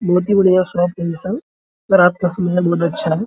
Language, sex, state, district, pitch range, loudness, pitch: Hindi, male, Bihar, Araria, 175-195 Hz, -16 LUFS, 180 Hz